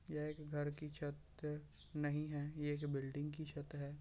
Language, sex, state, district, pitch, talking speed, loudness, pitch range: Hindi, male, Bihar, Purnia, 150 Hz, 195 wpm, -45 LUFS, 145-150 Hz